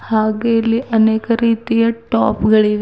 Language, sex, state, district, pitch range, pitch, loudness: Kannada, female, Karnataka, Bidar, 215-230 Hz, 225 Hz, -15 LUFS